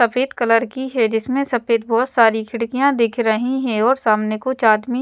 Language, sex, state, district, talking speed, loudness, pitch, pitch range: Hindi, female, Chhattisgarh, Raipur, 190 wpm, -18 LUFS, 235 Hz, 225-260 Hz